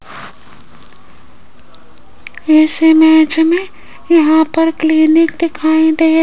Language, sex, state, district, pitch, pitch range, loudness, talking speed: Hindi, female, Rajasthan, Jaipur, 320 Hz, 315-325 Hz, -11 LUFS, 85 wpm